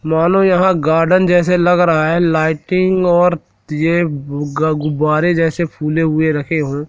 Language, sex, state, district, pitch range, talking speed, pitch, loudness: Hindi, male, Madhya Pradesh, Katni, 155-175 Hz, 150 wpm, 160 Hz, -14 LUFS